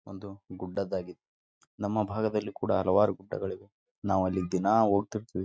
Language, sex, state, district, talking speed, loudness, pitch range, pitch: Kannada, male, Karnataka, Raichur, 120 wpm, -29 LUFS, 95-110 Hz, 100 Hz